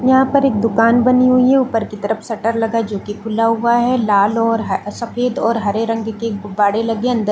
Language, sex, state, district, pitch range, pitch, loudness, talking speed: Hindi, female, Chhattisgarh, Balrampur, 215-240 Hz, 225 Hz, -16 LUFS, 240 wpm